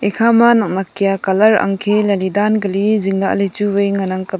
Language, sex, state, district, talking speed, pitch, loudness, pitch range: Wancho, female, Arunachal Pradesh, Longding, 260 wpm, 200 Hz, -15 LUFS, 195-210 Hz